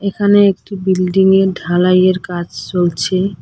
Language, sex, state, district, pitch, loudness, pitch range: Bengali, female, West Bengal, Cooch Behar, 185 Hz, -14 LUFS, 180-195 Hz